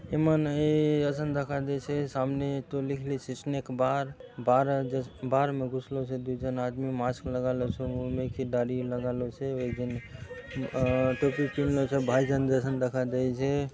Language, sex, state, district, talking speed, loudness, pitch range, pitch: Halbi, male, Chhattisgarh, Bastar, 165 wpm, -30 LUFS, 125-140 Hz, 130 Hz